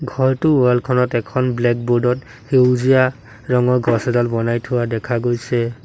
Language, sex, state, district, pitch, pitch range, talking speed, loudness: Assamese, male, Assam, Sonitpur, 125 Hz, 120-130 Hz, 155 wpm, -17 LUFS